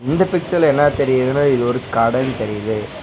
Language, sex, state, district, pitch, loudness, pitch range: Tamil, male, Tamil Nadu, Nilgiris, 130 Hz, -17 LUFS, 115-145 Hz